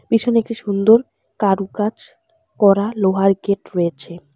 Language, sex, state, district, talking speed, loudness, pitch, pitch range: Bengali, female, West Bengal, Alipurduar, 110 wpm, -17 LUFS, 200 Hz, 195-225 Hz